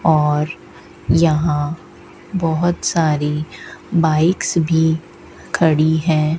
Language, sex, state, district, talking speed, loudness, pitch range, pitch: Hindi, female, Rajasthan, Bikaner, 75 wpm, -17 LUFS, 155-165 Hz, 160 Hz